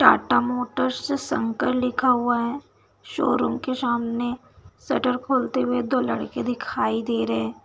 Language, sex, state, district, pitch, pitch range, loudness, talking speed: Hindi, female, Bihar, Saharsa, 250 Hz, 240-255 Hz, -24 LUFS, 140 wpm